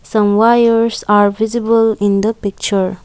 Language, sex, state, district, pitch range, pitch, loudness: English, female, Assam, Kamrup Metropolitan, 205-230 Hz, 220 Hz, -13 LUFS